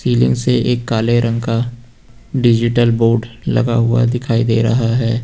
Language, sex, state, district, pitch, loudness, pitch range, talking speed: Hindi, male, Uttar Pradesh, Lucknow, 115 Hz, -15 LUFS, 115-120 Hz, 160 wpm